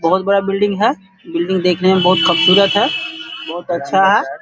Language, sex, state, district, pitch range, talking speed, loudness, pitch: Hindi, male, Bihar, Saharsa, 175-200 Hz, 175 wpm, -14 LUFS, 190 Hz